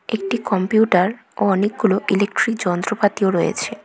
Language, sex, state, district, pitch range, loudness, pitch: Bengali, female, West Bengal, Cooch Behar, 190-220 Hz, -19 LUFS, 200 Hz